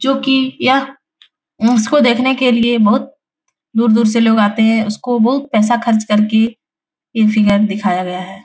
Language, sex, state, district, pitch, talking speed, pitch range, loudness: Hindi, female, Bihar, Jahanabad, 230 Hz, 180 wpm, 215-260 Hz, -14 LUFS